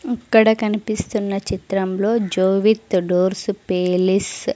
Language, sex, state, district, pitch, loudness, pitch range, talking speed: Telugu, female, Andhra Pradesh, Sri Satya Sai, 200 Hz, -19 LUFS, 190-220 Hz, 90 wpm